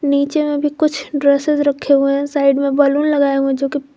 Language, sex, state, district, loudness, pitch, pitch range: Hindi, female, Jharkhand, Garhwa, -15 LUFS, 285 Hz, 280-290 Hz